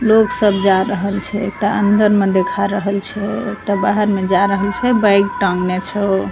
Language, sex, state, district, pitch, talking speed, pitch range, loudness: Maithili, female, Bihar, Begusarai, 200 Hz, 190 wpm, 195-205 Hz, -16 LUFS